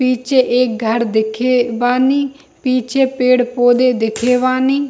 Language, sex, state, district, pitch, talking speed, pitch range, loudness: Hindi, female, Bihar, Darbhanga, 250 Hz, 110 wpm, 245-260 Hz, -15 LUFS